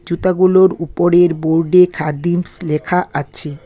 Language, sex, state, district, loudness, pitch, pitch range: Bengali, female, West Bengal, Alipurduar, -15 LUFS, 175 Hz, 155-180 Hz